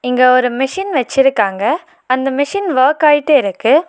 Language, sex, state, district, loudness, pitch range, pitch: Tamil, female, Tamil Nadu, Nilgiris, -14 LUFS, 255-305 Hz, 270 Hz